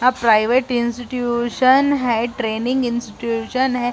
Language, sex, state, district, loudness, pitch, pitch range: Hindi, female, Bihar, Gopalganj, -18 LUFS, 240 Hz, 230-255 Hz